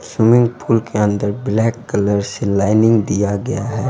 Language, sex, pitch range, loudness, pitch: Bhojpuri, male, 100-115 Hz, -16 LUFS, 110 Hz